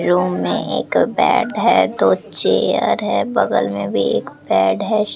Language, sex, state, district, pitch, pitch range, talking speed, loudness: Hindi, female, Bihar, Katihar, 95 Hz, 90-100 Hz, 165 wpm, -17 LUFS